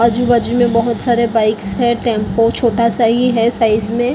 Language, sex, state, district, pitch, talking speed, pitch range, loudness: Hindi, female, Maharashtra, Mumbai Suburban, 235 Hz, 245 wpm, 225-240 Hz, -14 LUFS